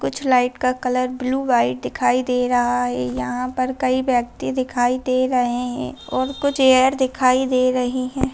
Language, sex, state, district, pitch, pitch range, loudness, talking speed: Hindi, female, Bihar, Darbhanga, 255 Hz, 245-260 Hz, -20 LUFS, 180 wpm